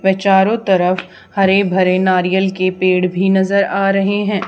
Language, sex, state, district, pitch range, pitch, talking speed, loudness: Hindi, female, Haryana, Charkhi Dadri, 185-195 Hz, 190 Hz, 175 wpm, -14 LUFS